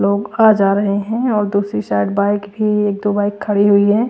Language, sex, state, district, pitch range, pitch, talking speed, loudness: Hindi, female, Bihar, West Champaran, 200-210 Hz, 205 Hz, 235 wpm, -15 LUFS